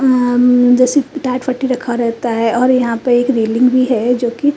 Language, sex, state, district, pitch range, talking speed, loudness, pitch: Hindi, female, Chandigarh, Chandigarh, 240-255 Hz, 225 wpm, -13 LUFS, 245 Hz